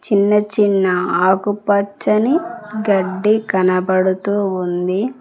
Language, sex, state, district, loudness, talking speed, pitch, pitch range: Telugu, female, Telangana, Mahabubabad, -16 LUFS, 70 wpm, 200 Hz, 185-210 Hz